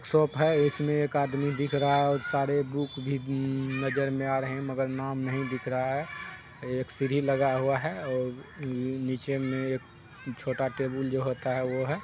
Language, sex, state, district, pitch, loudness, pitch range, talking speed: Hindi, male, Bihar, Saharsa, 135 Hz, -29 LUFS, 130-140 Hz, 195 wpm